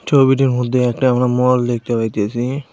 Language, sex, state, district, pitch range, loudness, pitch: Bengali, male, West Bengal, Cooch Behar, 120-130 Hz, -16 LUFS, 125 Hz